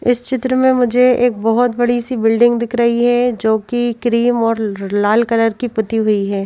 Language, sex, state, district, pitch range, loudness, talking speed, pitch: Hindi, female, Madhya Pradesh, Bhopal, 225-245 Hz, -15 LUFS, 205 wpm, 235 Hz